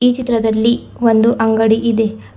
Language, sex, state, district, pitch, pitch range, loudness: Kannada, female, Karnataka, Bidar, 225 Hz, 220-235 Hz, -14 LUFS